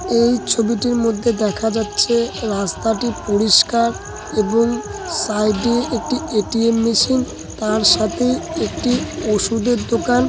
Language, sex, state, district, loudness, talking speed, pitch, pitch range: Bengali, male, West Bengal, Dakshin Dinajpur, -18 LUFS, 120 wpm, 230 Hz, 215-240 Hz